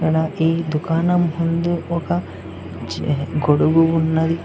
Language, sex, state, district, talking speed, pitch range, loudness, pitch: Telugu, male, Telangana, Mahabubabad, 110 wpm, 145-165 Hz, -19 LUFS, 160 Hz